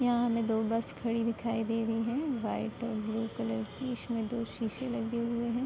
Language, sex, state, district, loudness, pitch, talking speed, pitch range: Hindi, female, Uttar Pradesh, Budaun, -33 LUFS, 230 Hz, 210 wpm, 225-240 Hz